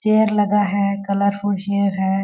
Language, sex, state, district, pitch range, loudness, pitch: Hindi, female, Chhattisgarh, Balrampur, 200-205 Hz, -19 LUFS, 200 Hz